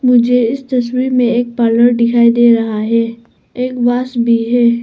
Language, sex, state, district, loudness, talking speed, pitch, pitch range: Hindi, female, Arunachal Pradesh, Papum Pare, -13 LUFS, 175 wpm, 240 Hz, 235-250 Hz